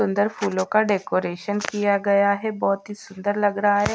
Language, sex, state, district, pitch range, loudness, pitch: Hindi, female, Odisha, Malkangiri, 200-205 Hz, -22 LUFS, 205 Hz